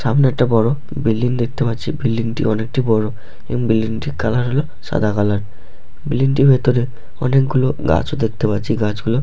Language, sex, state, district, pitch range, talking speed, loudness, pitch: Bengali, male, West Bengal, Malda, 110-130 Hz, 180 wpm, -18 LUFS, 115 Hz